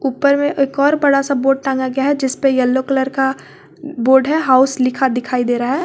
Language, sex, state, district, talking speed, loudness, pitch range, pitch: Hindi, female, Jharkhand, Garhwa, 235 wpm, -15 LUFS, 260-280 Hz, 270 Hz